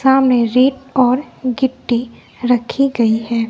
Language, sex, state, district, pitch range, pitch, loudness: Hindi, female, Bihar, West Champaran, 235-265 Hz, 250 Hz, -16 LUFS